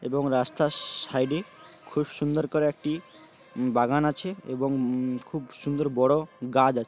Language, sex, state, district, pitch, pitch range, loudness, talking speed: Bengali, male, West Bengal, Paschim Medinipur, 140 Hz, 125-150 Hz, -27 LUFS, 150 wpm